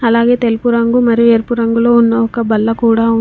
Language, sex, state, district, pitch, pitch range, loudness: Telugu, female, Telangana, Komaram Bheem, 230 Hz, 230-235 Hz, -12 LUFS